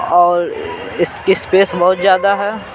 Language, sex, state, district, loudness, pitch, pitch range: Hindi, male, Bihar, Patna, -14 LUFS, 190 Hz, 180-205 Hz